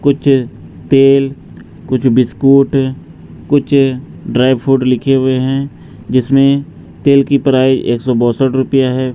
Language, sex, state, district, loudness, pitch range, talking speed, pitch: Hindi, male, Bihar, Katihar, -12 LUFS, 130-140 Hz, 125 wpm, 135 Hz